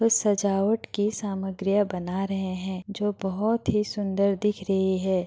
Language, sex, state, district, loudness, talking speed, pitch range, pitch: Hindi, female, Bihar, Madhepura, -26 LUFS, 170 wpm, 190-210 Hz, 195 Hz